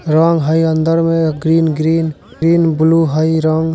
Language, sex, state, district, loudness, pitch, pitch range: Maithili, male, Bihar, Vaishali, -13 LUFS, 160 Hz, 155-165 Hz